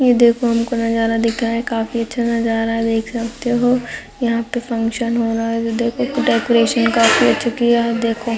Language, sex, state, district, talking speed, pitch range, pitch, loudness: Hindi, female, Chhattisgarh, Raigarh, 185 wpm, 230-240 Hz, 230 Hz, -17 LUFS